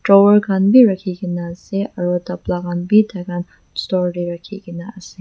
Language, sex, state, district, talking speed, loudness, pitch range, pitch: Nagamese, female, Nagaland, Dimapur, 150 wpm, -17 LUFS, 175-200 Hz, 185 Hz